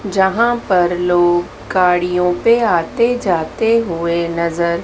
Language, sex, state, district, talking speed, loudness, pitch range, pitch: Hindi, female, Madhya Pradesh, Dhar, 110 wpm, -15 LUFS, 170-200 Hz, 180 Hz